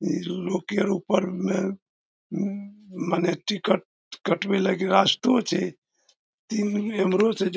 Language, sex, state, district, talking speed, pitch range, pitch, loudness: Maithili, male, Bihar, Darbhanga, 135 wpm, 180-200 Hz, 190 Hz, -25 LUFS